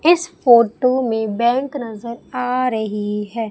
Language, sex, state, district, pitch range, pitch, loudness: Hindi, female, Madhya Pradesh, Umaria, 220-255 Hz, 235 Hz, -18 LUFS